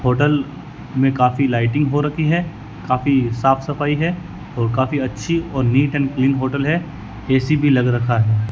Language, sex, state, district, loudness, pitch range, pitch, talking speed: Hindi, male, Rajasthan, Bikaner, -18 LUFS, 125-145 Hz, 135 Hz, 175 wpm